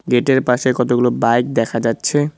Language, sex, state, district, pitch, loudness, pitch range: Bengali, male, West Bengal, Cooch Behar, 125 Hz, -16 LUFS, 115-130 Hz